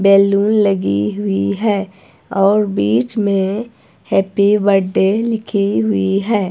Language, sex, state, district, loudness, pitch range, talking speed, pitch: Hindi, female, Himachal Pradesh, Shimla, -15 LUFS, 185-205 Hz, 110 wpm, 195 Hz